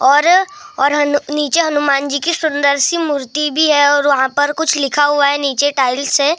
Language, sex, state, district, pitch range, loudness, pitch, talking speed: Hindi, male, Maharashtra, Gondia, 280-305 Hz, -14 LUFS, 290 Hz, 215 wpm